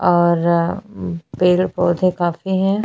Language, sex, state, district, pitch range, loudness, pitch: Hindi, female, Chhattisgarh, Bastar, 170-185 Hz, -18 LUFS, 175 Hz